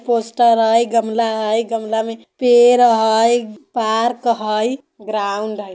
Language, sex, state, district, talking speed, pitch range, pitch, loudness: Bajjika, female, Bihar, Vaishali, 125 wpm, 220-235 Hz, 225 Hz, -16 LUFS